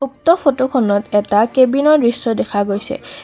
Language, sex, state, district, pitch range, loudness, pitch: Assamese, female, Assam, Kamrup Metropolitan, 210-280 Hz, -15 LUFS, 255 Hz